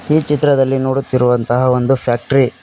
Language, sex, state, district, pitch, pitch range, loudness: Kannada, male, Karnataka, Koppal, 135 Hz, 125-135 Hz, -14 LUFS